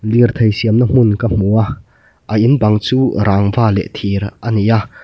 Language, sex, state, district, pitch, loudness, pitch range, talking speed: Mizo, male, Mizoram, Aizawl, 110 Hz, -14 LUFS, 105-120 Hz, 190 wpm